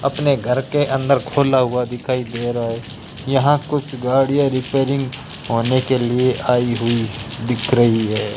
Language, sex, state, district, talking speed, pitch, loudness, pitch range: Hindi, male, Rajasthan, Bikaner, 160 wpm, 130 Hz, -18 LUFS, 120-135 Hz